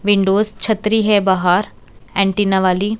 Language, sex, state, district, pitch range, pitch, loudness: Hindi, female, Chhattisgarh, Raipur, 190-210 Hz, 200 Hz, -16 LUFS